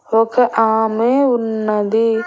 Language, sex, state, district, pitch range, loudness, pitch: Telugu, female, Andhra Pradesh, Annamaya, 220-235 Hz, -15 LUFS, 225 Hz